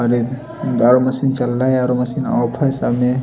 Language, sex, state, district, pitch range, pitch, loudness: Hindi, male, Chhattisgarh, Raipur, 120-130 Hz, 125 Hz, -17 LUFS